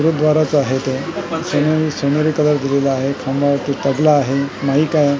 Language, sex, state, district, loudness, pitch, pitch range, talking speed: Marathi, male, Maharashtra, Mumbai Suburban, -17 LUFS, 145 Hz, 135-155 Hz, 150 wpm